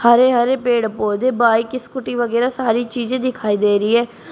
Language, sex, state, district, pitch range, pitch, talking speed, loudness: Hindi, female, Uttar Pradesh, Shamli, 225-255 Hz, 235 Hz, 180 wpm, -17 LUFS